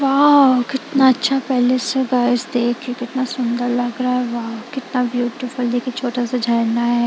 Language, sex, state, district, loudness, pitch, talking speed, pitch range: Hindi, female, Punjab, Kapurthala, -18 LUFS, 250 Hz, 170 wpm, 240-260 Hz